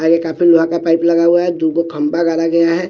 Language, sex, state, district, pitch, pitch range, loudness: Hindi, male, Bihar, West Champaran, 170 Hz, 165-170 Hz, -14 LUFS